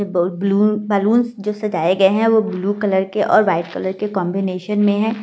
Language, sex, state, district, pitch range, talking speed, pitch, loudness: Hindi, female, Delhi, New Delhi, 190-210 Hz, 220 wpm, 205 Hz, -17 LUFS